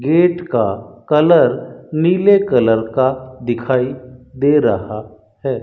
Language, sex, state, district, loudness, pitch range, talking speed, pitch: Hindi, male, Rajasthan, Bikaner, -15 LUFS, 115-150 Hz, 105 wpm, 130 Hz